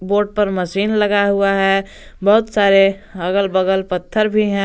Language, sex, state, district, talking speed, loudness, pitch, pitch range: Hindi, male, Jharkhand, Garhwa, 165 wpm, -16 LUFS, 200 Hz, 195-205 Hz